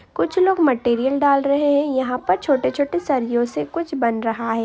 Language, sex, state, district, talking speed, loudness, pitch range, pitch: Hindi, female, Uttar Pradesh, Hamirpur, 205 wpm, -19 LUFS, 235-285 Hz, 270 Hz